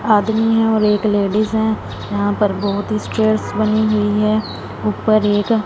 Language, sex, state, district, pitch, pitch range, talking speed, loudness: Hindi, female, Punjab, Fazilka, 215 Hz, 205-215 Hz, 170 wpm, -17 LUFS